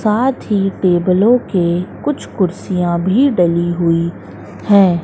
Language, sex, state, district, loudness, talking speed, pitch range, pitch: Hindi, female, Madhya Pradesh, Katni, -15 LUFS, 120 wpm, 170-205 Hz, 185 Hz